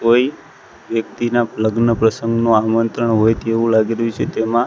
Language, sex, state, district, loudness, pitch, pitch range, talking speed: Gujarati, male, Gujarat, Gandhinagar, -17 LUFS, 115 Hz, 110-115 Hz, 140 wpm